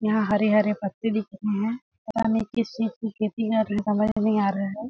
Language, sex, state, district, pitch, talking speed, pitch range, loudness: Hindi, female, Chhattisgarh, Sarguja, 215 Hz, 220 wpm, 210-225 Hz, -25 LUFS